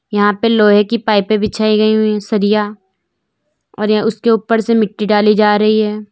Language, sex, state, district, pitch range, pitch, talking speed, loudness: Hindi, female, Uttar Pradesh, Lalitpur, 210-215 Hz, 215 Hz, 185 wpm, -13 LUFS